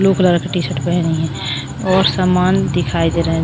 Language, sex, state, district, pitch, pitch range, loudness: Hindi, female, Jharkhand, Sahebganj, 170 Hz, 160-180 Hz, -16 LUFS